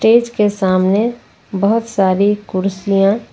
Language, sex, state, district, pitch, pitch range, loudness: Hindi, female, Jharkhand, Ranchi, 200 Hz, 195-225 Hz, -15 LUFS